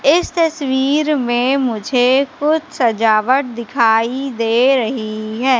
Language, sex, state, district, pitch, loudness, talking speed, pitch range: Hindi, female, Madhya Pradesh, Katni, 255 Hz, -16 LUFS, 105 wpm, 230-280 Hz